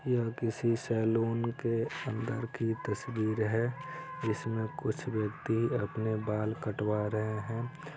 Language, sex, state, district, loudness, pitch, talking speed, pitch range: Hindi, male, Bihar, Araria, -33 LUFS, 115 Hz, 120 wpm, 110-120 Hz